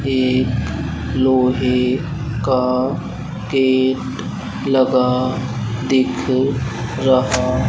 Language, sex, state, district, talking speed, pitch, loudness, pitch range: Hindi, male, Madhya Pradesh, Dhar, 55 wpm, 130 Hz, -18 LUFS, 125-130 Hz